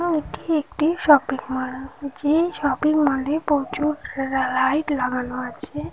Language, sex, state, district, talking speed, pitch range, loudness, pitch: Bengali, female, West Bengal, North 24 Parganas, 140 wpm, 260-305 Hz, -22 LUFS, 285 Hz